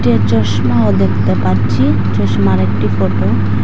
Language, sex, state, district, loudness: Bengali, female, Assam, Hailakandi, -13 LUFS